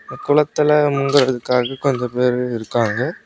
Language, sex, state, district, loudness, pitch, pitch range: Tamil, male, Tamil Nadu, Kanyakumari, -18 LUFS, 130 Hz, 125-145 Hz